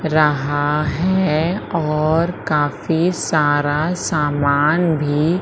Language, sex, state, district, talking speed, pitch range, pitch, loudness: Hindi, female, Madhya Pradesh, Umaria, 75 wpm, 145-170 Hz, 155 Hz, -18 LUFS